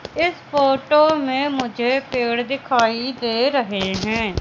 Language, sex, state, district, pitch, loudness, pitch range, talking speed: Hindi, female, Madhya Pradesh, Katni, 260 Hz, -19 LUFS, 235-280 Hz, 120 wpm